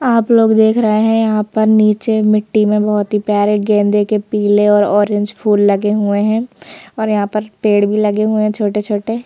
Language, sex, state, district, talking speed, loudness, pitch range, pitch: Hindi, female, Madhya Pradesh, Bhopal, 195 wpm, -13 LUFS, 205-220 Hz, 210 Hz